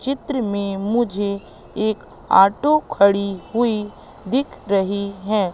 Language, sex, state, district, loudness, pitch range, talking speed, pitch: Hindi, female, Madhya Pradesh, Katni, -20 LUFS, 200-240 Hz, 110 wpm, 205 Hz